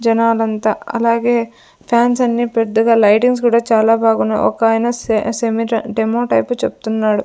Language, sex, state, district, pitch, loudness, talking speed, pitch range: Telugu, female, Andhra Pradesh, Sri Satya Sai, 230 Hz, -15 LUFS, 130 wpm, 220-235 Hz